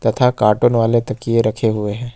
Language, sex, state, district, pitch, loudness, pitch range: Hindi, male, Jharkhand, Ranchi, 115 Hz, -16 LUFS, 110-120 Hz